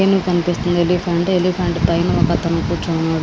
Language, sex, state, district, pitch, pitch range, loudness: Telugu, female, Andhra Pradesh, Srikakulam, 175 Hz, 170-180 Hz, -17 LUFS